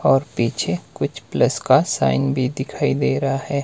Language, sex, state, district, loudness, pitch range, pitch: Hindi, male, Himachal Pradesh, Shimla, -20 LUFS, 100-140 Hz, 130 Hz